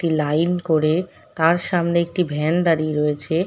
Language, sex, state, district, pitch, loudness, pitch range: Bengali, female, West Bengal, Dakshin Dinajpur, 165 Hz, -20 LUFS, 155-175 Hz